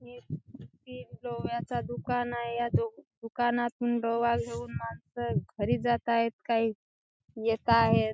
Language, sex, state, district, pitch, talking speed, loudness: Marathi, female, Maharashtra, Chandrapur, 230 Hz, 120 wpm, -30 LUFS